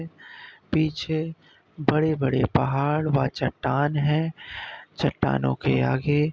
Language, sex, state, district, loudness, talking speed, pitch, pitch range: Hindi, male, Uttar Pradesh, Muzaffarnagar, -24 LUFS, 95 wpm, 145 Hz, 135-155 Hz